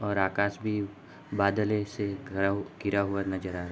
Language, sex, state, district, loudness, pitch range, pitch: Hindi, male, Uttar Pradesh, Jalaun, -30 LUFS, 95-105 Hz, 100 Hz